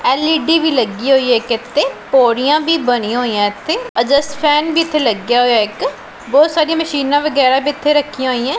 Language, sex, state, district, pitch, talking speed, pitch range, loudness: Punjabi, female, Punjab, Pathankot, 270 Hz, 190 wpm, 245-300 Hz, -14 LUFS